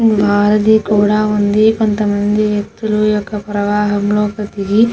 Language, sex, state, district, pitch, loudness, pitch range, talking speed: Telugu, female, Andhra Pradesh, Krishna, 210 Hz, -14 LUFS, 205-215 Hz, 95 wpm